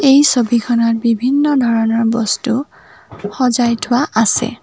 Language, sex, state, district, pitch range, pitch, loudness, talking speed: Assamese, female, Assam, Kamrup Metropolitan, 230-255 Hz, 235 Hz, -14 LUFS, 105 wpm